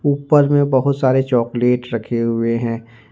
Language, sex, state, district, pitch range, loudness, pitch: Hindi, male, Jharkhand, Ranchi, 115-140 Hz, -17 LUFS, 125 Hz